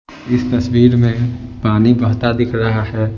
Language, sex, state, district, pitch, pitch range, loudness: Hindi, male, Bihar, Patna, 120 Hz, 115-120 Hz, -15 LUFS